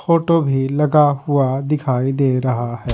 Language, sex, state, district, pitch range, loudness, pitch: Hindi, male, Bihar, Patna, 130-150 Hz, -17 LUFS, 140 Hz